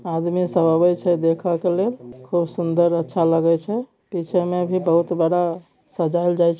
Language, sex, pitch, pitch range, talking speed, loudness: Maithili, male, 175 Hz, 165-180 Hz, 170 wpm, -20 LUFS